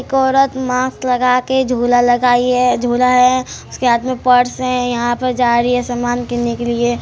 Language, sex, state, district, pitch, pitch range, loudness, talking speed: Hindi, female, Bihar, Araria, 250 Hz, 245-255 Hz, -15 LUFS, 205 wpm